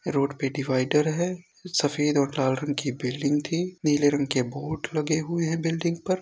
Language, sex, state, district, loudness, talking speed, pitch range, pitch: Hindi, male, Uttar Pradesh, Etah, -26 LUFS, 205 wpm, 140-165 Hz, 150 Hz